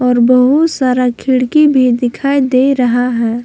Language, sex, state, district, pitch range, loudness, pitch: Hindi, female, Jharkhand, Palamu, 245-270 Hz, -11 LUFS, 255 Hz